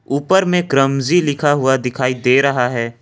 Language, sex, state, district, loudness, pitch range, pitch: Hindi, male, Jharkhand, Ranchi, -15 LUFS, 125-145 Hz, 135 Hz